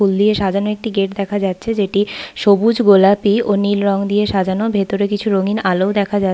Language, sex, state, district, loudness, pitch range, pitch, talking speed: Bengali, female, West Bengal, Paschim Medinipur, -16 LUFS, 195-210 Hz, 200 Hz, 210 wpm